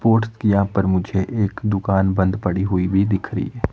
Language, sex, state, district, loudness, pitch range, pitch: Hindi, male, Himachal Pradesh, Shimla, -20 LUFS, 95-105 Hz, 100 Hz